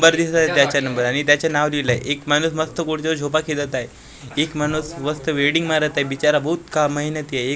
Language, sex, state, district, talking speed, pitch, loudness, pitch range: Marathi, male, Maharashtra, Gondia, 205 wpm, 150 Hz, -20 LUFS, 140-155 Hz